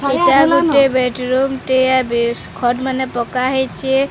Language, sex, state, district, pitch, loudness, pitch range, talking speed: Odia, female, Odisha, Sambalpur, 260 Hz, -15 LUFS, 250-270 Hz, 160 wpm